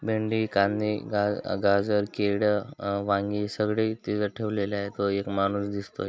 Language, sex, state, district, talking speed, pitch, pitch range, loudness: Marathi, male, Maharashtra, Dhule, 130 wpm, 105 Hz, 100-105 Hz, -27 LUFS